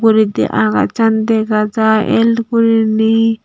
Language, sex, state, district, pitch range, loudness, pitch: Chakma, female, Tripura, Unakoti, 215-225 Hz, -13 LUFS, 220 Hz